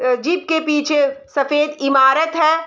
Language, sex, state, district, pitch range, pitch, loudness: Hindi, female, Bihar, Saharsa, 275-315 Hz, 295 Hz, -16 LUFS